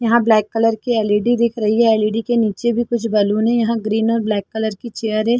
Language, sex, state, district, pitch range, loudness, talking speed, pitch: Hindi, female, Chhattisgarh, Bilaspur, 215-235 Hz, -17 LUFS, 245 wpm, 225 Hz